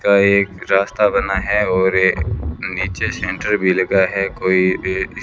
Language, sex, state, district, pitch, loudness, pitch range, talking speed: Hindi, male, Rajasthan, Bikaner, 95 Hz, -17 LUFS, 95-100 Hz, 150 wpm